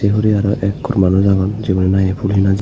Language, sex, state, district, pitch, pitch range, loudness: Chakma, male, Tripura, Unakoti, 100 Hz, 95-105 Hz, -15 LUFS